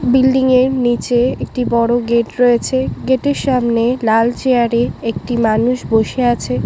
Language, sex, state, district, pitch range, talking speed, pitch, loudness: Bengali, female, West Bengal, Malda, 235-255 Hz, 155 wpm, 240 Hz, -15 LUFS